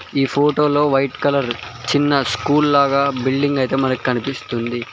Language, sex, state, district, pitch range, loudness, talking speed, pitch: Telugu, male, Telangana, Mahabubabad, 125-145 Hz, -18 LUFS, 135 wpm, 135 Hz